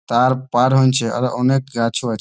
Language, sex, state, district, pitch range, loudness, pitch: Bengali, male, West Bengal, Malda, 120-130 Hz, -17 LUFS, 125 Hz